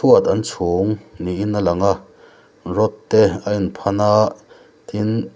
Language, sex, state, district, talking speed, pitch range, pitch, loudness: Mizo, male, Mizoram, Aizawl, 155 wpm, 100-110 Hz, 105 Hz, -18 LUFS